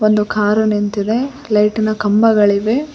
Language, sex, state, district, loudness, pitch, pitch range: Kannada, female, Karnataka, Koppal, -15 LUFS, 215 Hz, 210-225 Hz